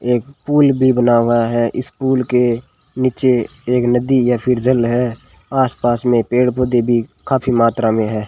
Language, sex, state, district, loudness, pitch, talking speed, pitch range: Hindi, male, Rajasthan, Bikaner, -16 LUFS, 125 Hz, 190 wpm, 120-130 Hz